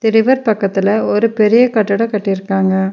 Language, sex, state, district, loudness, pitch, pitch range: Tamil, female, Tamil Nadu, Nilgiris, -14 LUFS, 210 Hz, 195-225 Hz